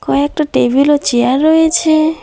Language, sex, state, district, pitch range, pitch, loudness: Bengali, female, West Bengal, Alipurduar, 275-315 Hz, 295 Hz, -12 LUFS